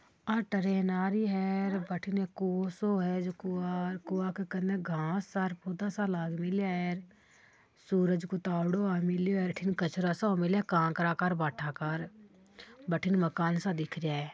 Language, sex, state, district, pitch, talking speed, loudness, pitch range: Marwari, female, Rajasthan, Churu, 185 Hz, 180 wpm, -32 LUFS, 175-195 Hz